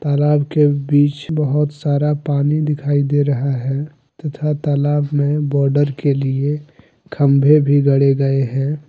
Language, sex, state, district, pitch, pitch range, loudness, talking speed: Hindi, male, Jharkhand, Deoghar, 145 Hz, 140-150 Hz, -16 LUFS, 140 wpm